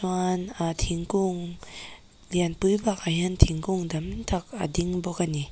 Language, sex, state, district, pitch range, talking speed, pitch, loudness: Mizo, female, Mizoram, Aizawl, 170-190 Hz, 130 wpm, 180 Hz, -27 LUFS